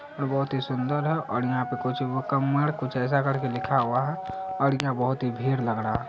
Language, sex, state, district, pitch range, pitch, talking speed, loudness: Hindi, male, Bihar, Saharsa, 125-140 Hz, 135 Hz, 235 wpm, -26 LUFS